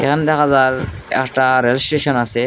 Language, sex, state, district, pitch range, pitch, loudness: Bengali, male, Assam, Hailakandi, 120-145 Hz, 130 Hz, -15 LUFS